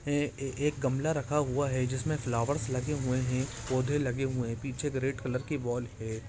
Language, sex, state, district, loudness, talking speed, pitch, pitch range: Hindi, male, Jharkhand, Sahebganj, -32 LUFS, 190 wpm, 130 Hz, 125-145 Hz